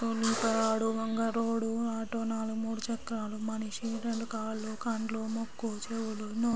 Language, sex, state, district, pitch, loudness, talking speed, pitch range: Telugu, female, Andhra Pradesh, Srikakulam, 225 Hz, -33 LUFS, 110 wpm, 220-230 Hz